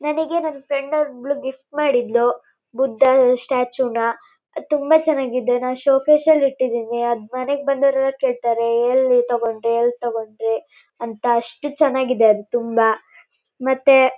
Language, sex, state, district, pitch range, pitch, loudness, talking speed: Kannada, female, Karnataka, Shimoga, 235-280 Hz, 255 Hz, -19 LUFS, 125 wpm